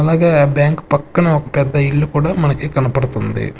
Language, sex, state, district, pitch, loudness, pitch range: Telugu, male, Andhra Pradesh, Sri Satya Sai, 145 Hz, -15 LUFS, 140-150 Hz